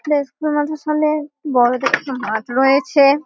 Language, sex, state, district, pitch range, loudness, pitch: Bengali, female, West Bengal, Malda, 265-300 Hz, -17 LUFS, 285 Hz